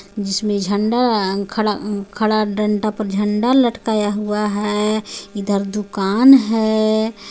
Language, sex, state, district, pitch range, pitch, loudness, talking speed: Hindi, female, Jharkhand, Garhwa, 205-220 Hz, 210 Hz, -17 LUFS, 100 wpm